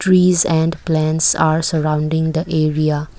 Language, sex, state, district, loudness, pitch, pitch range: English, female, Assam, Kamrup Metropolitan, -16 LUFS, 160 Hz, 155-165 Hz